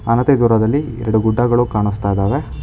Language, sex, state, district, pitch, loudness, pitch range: Kannada, male, Karnataka, Bangalore, 115 Hz, -16 LUFS, 110-120 Hz